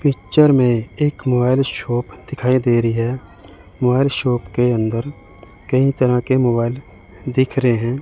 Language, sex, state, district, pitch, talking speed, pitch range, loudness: Hindi, male, Chandigarh, Chandigarh, 125 Hz, 150 wpm, 115-130 Hz, -17 LUFS